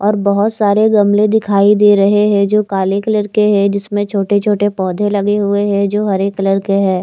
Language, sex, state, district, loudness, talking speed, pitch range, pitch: Hindi, female, Chandigarh, Chandigarh, -13 LUFS, 220 wpm, 200-210 Hz, 205 Hz